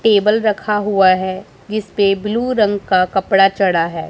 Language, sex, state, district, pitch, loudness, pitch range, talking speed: Hindi, male, Punjab, Pathankot, 200 Hz, -15 LUFS, 190-210 Hz, 160 wpm